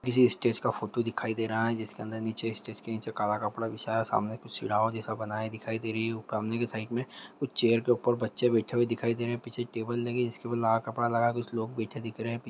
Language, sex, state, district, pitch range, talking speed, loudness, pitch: Hindi, male, Bihar, Lakhisarai, 110-120 Hz, 275 wpm, -31 LUFS, 115 Hz